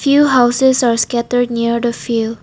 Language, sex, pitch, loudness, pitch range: English, female, 240 Hz, -14 LUFS, 235-255 Hz